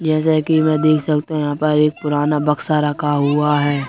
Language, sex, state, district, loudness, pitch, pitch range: Hindi, male, Madhya Pradesh, Bhopal, -17 LUFS, 150 Hz, 150-155 Hz